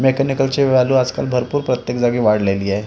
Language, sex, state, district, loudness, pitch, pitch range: Marathi, male, Maharashtra, Gondia, -17 LUFS, 125 Hz, 120-135 Hz